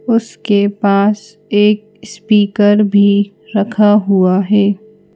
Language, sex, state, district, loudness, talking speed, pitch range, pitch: Hindi, female, Madhya Pradesh, Bhopal, -13 LUFS, 95 wpm, 200-215 Hz, 205 Hz